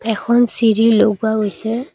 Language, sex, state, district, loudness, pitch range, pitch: Assamese, female, Assam, Kamrup Metropolitan, -15 LUFS, 220-235 Hz, 225 Hz